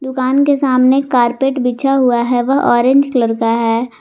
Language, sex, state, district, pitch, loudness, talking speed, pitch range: Hindi, female, Jharkhand, Garhwa, 255 Hz, -13 LUFS, 180 wpm, 240-270 Hz